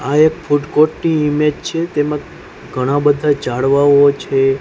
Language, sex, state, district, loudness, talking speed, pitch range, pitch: Gujarati, male, Gujarat, Gandhinagar, -15 LUFS, 145 wpm, 140-150 Hz, 145 Hz